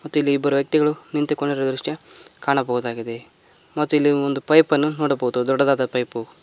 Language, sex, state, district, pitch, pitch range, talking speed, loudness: Kannada, male, Karnataka, Koppal, 140 Hz, 125-150 Hz, 130 wpm, -20 LUFS